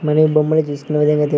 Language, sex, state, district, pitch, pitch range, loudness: Telugu, male, Andhra Pradesh, Srikakulam, 150 Hz, 150-155 Hz, -16 LUFS